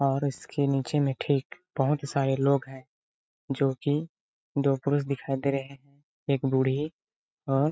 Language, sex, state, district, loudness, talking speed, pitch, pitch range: Hindi, male, Chhattisgarh, Balrampur, -28 LUFS, 165 wpm, 140 Hz, 135-145 Hz